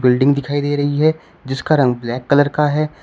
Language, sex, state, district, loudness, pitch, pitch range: Hindi, male, Uttar Pradesh, Shamli, -17 LUFS, 145 Hz, 135-150 Hz